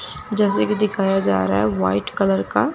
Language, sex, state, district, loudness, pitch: Hindi, female, Chandigarh, Chandigarh, -19 LUFS, 155 Hz